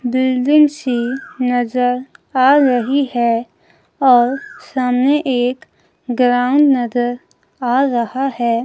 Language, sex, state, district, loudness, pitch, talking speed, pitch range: Hindi, female, Himachal Pradesh, Shimla, -16 LUFS, 250 Hz, 95 wpm, 245-270 Hz